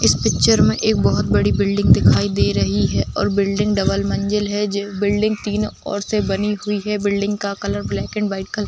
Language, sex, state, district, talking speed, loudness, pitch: Hindi, female, Uttar Pradesh, Ghazipur, 215 wpm, -18 LUFS, 200 Hz